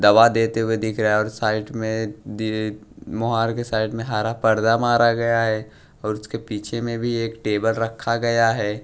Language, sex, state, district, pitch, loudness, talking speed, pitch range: Hindi, male, Bihar, West Champaran, 110 Hz, -21 LUFS, 190 wpm, 110-115 Hz